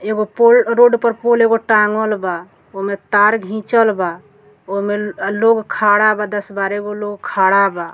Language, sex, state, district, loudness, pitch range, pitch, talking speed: Bhojpuri, female, Bihar, Muzaffarpur, -15 LUFS, 195-220 Hz, 210 Hz, 180 wpm